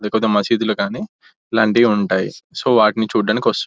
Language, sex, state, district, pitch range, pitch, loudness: Telugu, male, Telangana, Nalgonda, 105-115 Hz, 110 Hz, -17 LUFS